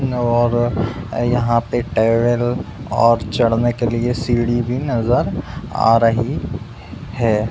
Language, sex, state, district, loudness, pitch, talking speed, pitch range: Hindi, male, Uttar Pradesh, Budaun, -18 LUFS, 120 Hz, 110 wpm, 115-120 Hz